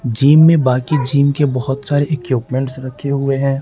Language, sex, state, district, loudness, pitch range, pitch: Hindi, male, Bihar, Patna, -15 LUFS, 130-145 Hz, 140 Hz